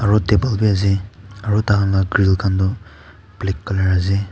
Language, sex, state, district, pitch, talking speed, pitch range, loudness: Nagamese, male, Nagaland, Kohima, 100 Hz, 195 wpm, 95-105 Hz, -18 LUFS